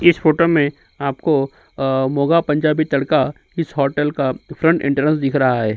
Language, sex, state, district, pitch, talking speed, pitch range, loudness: Hindi, male, Uttar Pradesh, Jyotiba Phule Nagar, 145 Hz, 165 wpm, 135-155 Hz, -18 LUFS